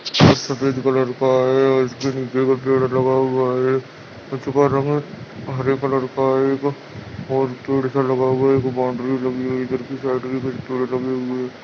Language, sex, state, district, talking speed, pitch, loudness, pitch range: Hindi, male, Uttarakhand, Uttarkashi, 205 wpm, 130 Hz, -19 LUFS, 130-135 Hz